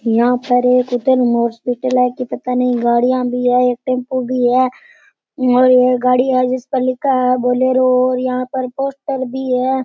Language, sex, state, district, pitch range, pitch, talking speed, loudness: Rajasthani, male, Rajasthan, Churu, 250-255 Hz, 255 Hz, 180 wpm, -15 LUFS